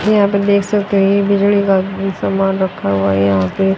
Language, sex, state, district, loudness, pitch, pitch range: Hindi, female, Haryana, Rohtak, -14 LUFS, 195 Hz, 190-200 Hz